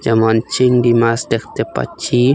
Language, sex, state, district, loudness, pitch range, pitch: Bengali, male, Assam, Hailakandi, -15 LUFS, 115-125 Hz, 120 Hz